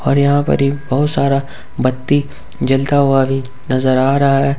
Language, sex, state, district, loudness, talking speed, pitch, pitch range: Hindi, male, Jharkhand, Ranchi, -15 LUFS, 185 wpm, 140 Hz, 135-140 Hz